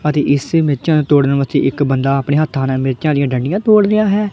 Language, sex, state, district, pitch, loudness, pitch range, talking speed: Punjabi, female, Punjab, Kapurthala, 145 Hz, -14 LUFS, 135-160 Hz, 220 wpm